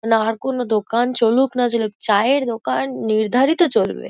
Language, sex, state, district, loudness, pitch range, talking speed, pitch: Bengali, female, West Bengal, Kolkata, -18 LUFS, 215-255 Hz, 175 wpm, 230 Hz